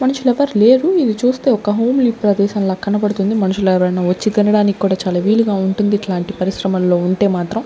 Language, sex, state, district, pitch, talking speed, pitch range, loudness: Telugu, female, Andhra Pradesh, Sri Satya Sai, 205 Hz, 165 wpm, 190-225 Hz, -15 LUFS